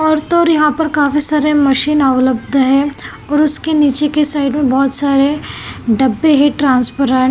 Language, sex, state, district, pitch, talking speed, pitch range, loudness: Hindi, female, Maharashtra, Gondia, 285 Hz, 170 wpm, 270-300 Hz, -13 LUFS